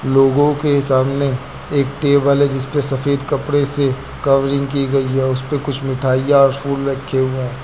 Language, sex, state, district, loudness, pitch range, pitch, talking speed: Hindi, male, Uttar Pradesh, Lucknow, -16 LUFS, 135-140 Hz, 140 Hz, 170 wpm